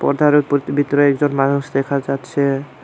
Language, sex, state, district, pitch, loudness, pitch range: Bengali, male, Tripura, Unakoti, 140 Hz, -17 LUFS, 135-145 Hz